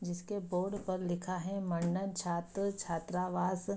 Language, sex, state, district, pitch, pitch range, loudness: Hindi, female, Bihar, Saharsa, 185 Hz, 175-195 Hz, -36 LUFS